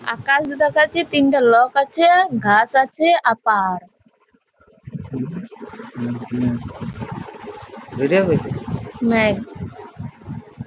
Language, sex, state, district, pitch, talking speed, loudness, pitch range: Bengali, female, West Bengal, Purulia, 225 Hz, 60 wpm, -17 LUFS, 180-275 Hz